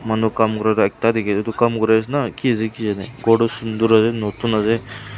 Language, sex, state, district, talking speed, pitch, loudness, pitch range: Nagamese, male, Nagaland, Kohima, 245 wpm, 110 Hz, -19 LUFS, 110-115 Hz